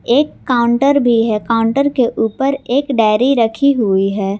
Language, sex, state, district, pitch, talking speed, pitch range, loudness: Hindi, female, Jharkhand, Garhwa, 235 Hz, 165 wpm, 220-275 Hz, -14 LUFS